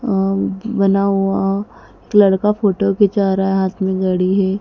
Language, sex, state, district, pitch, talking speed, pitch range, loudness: Hindi, female, Madhya Pradesh, Dhar, 195 Hz, 155 wpm, 190-200 Hz, -16 LUFS